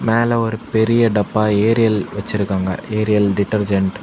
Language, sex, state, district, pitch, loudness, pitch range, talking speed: Tamil, male, Tamil Nadu, Kanyakumari, 105 Hz, -17 LUFS, 100-110 Hz, 135 wpm